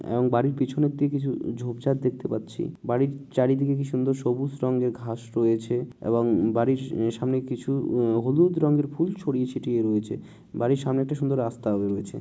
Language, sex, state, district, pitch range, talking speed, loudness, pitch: Bengali, male, West Bengal, Malda, 120-140 Hz, 170 wpm, -25 LUFS, 130 Hz